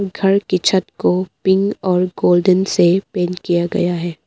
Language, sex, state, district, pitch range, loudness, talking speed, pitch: Hindi, female, Arunachal Pradesh, Papum Pare, 175-190 Hz, -16 LUFS, 170 wpm, 185 Hz